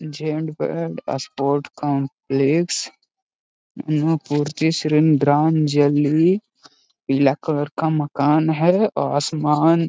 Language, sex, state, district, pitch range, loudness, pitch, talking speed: Hindi, male, Bihar, Gaya, 145-160 Hz, -20 LUFS, 150 Hz, 65 wpm